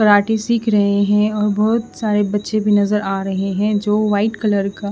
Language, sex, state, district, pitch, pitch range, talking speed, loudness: Hindi, female, Odisha, Khordha, 210 Hz, 200-215 Hz, 205 wpm, -17 LUFS